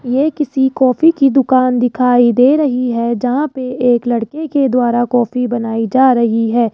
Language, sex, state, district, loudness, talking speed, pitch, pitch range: Hindi, male, Rajasthan, Jaipur, -13 LUFS, 180 wpm, 250 Hz, 240-265 Hz